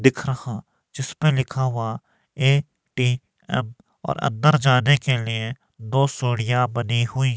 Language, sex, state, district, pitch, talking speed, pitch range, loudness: Hindi, male, Himachal Pradesh, Shimla, 130 Hz, 130 wpm, 120-135 Hz, -22 LUFS